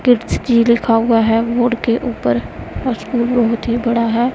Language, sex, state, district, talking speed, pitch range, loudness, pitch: Hindi, female, Punjab, Pathankot, 165 wpm, 230-240 Hz, -16 LUFS, 235 Hz